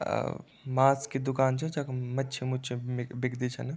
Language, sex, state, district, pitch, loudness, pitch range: Garhwali, male, Uttarakhand, Tehri Garhwal, 130 Hz, -31 LUFS, 125-135 Hz